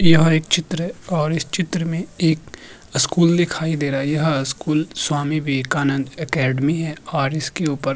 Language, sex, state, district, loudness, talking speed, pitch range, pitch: Hindi, male, Uttarakhand, Tehri Garhwal, -20 LUFS, 180 wpm, 145-165 Hz, 155 Hz